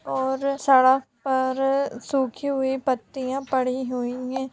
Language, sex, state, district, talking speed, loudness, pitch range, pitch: Hindi, female, Bihar, Gopalganj, 120 wpm, -23 LUFS, 255-270 Hz, 265 Hz